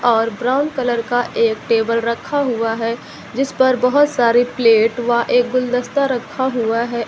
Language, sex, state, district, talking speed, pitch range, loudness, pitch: Hindi, female, Uttar Pradesh, Lucknow, 170 wpm, 230-255 Hz, -17 LUFS, 240 Hz